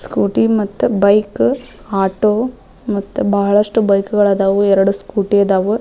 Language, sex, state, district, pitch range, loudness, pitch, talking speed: Kannada, female, Karnataka, Dharwad, 195-215 Hz, -15 LUFS, 205 Hz, 105 wpm